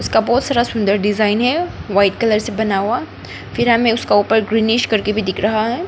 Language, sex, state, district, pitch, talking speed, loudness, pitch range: Hindi, female, Arunachal Pradesh, Papum Pare, 220 Hz, 215 wpm, -16 LUFS, 210-235 Hz